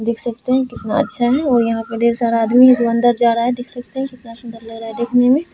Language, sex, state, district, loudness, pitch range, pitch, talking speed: Hindi, female, Bihar, Lakhisarai, -16 LUFS, 230-250 Hz, 240 Hz, 305 wpm